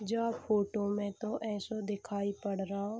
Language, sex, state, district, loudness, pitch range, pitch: Hindi, female, Bihar, Saharsa, -35 LUFS, 200-215 Hz, 205 Hz